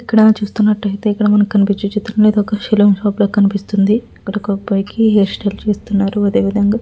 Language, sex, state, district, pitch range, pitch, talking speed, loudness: Telugu, female, Andhra Pradesh, Visakhapatnam, 200-215 Hz, 205 Hz, 185 wpm, -14 LUFS